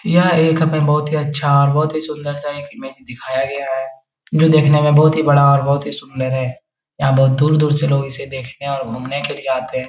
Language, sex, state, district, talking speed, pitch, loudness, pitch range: Hindi, male, Bihar, Jahanabad, 235 wpm, 140 Hz, -16 LUFS, 135-150 Hz